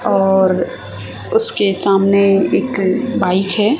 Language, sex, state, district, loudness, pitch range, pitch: Hindi, female, Haryana, Charkhi Dadri, -14 LUFS, 190-200 Hz, 195 Hz